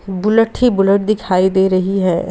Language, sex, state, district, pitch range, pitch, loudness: Hindi, female, Bihar, Purnia, 185-215 Hz, 195 Hz, -14 LUFS